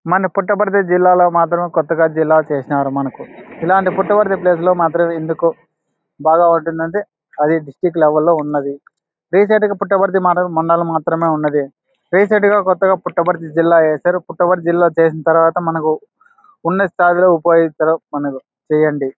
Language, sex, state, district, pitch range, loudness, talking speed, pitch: Telugu, male, Andhra Pradesh, Anantapur, 160-185 Hz, -15 LUFS, 130 wpm, 170 Hz